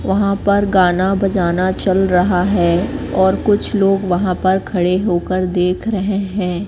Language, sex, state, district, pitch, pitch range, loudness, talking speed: Hindi, female, Madhya Pradesh, Katni, 185 Hz, 180-200 Hz, -16 LUFS, 155 wpm